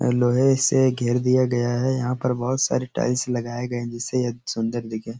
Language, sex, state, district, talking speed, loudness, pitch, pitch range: Hindi, male, Uttar Pradesh, Etah, 205 wpm, -22 LUFS, 125 Hz, 120-130 Hz